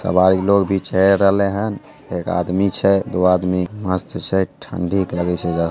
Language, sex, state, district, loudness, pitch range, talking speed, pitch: Hindi, male, Bihar, Begusarai, -18 LUFS, 90-100 Hz, 180 wpm, 95 Hz